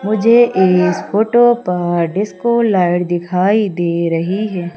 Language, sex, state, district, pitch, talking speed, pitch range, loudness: Hindi, female, Madhya Pradesh, Umaria, 185 Hz, 125 wpm, 175-215 Hz, -14 LUFS